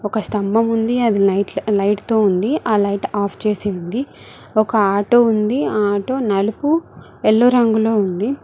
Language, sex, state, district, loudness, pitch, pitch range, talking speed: Telugu, female, Telangana, Mahabubabad, -17 LUFS, 215 Hz, 200-230 Hz, 135 wpm